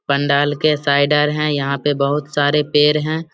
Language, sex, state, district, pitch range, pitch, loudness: Hindi, male, Bihar, Samastipur, 140-150 Hz, 145 Hz, -16 LUFS